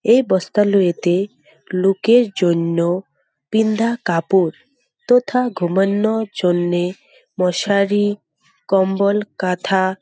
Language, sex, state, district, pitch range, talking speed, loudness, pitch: Bengali, female, West Bengal, Dakshin Dinajpur, 180-220 Hz, 80 wpm, -18 LUFS, 195 Hz